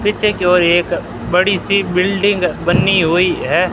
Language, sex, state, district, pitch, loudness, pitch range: Hindi, male, Rajasthan, Bikaner, 180 Hz, -14 LUFS, 175-200 Hz